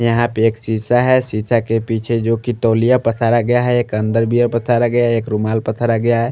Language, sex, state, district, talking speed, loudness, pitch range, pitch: Hindi, male, Chandigarh, Chandigarh, 210 wpm, -16 LUFS, 115-120 Hz, 115 Hz